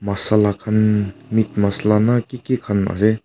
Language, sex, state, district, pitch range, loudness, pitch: Nagamese, male, Nagaland, Kohima, 100-110 Hz, -18 LUFS, 105 Hz